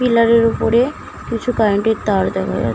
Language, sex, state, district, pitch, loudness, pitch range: Bengali, female, West Bengal, Malda, 230 Hz, -16 LUFS, 225-240 Hz